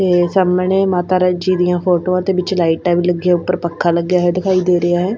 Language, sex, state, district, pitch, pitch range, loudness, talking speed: Punjabi, female, Punjab, Fazilka, 180 Hz, 175-185 Hz, -15 LUFS, 220 wpm